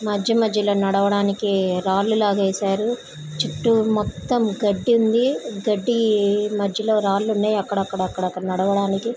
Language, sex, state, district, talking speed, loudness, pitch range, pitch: Telugu, female, Andhra Pradesh, Guntur, 110 wpm, -21 LUFS, 195-220 Hz, 205 Hz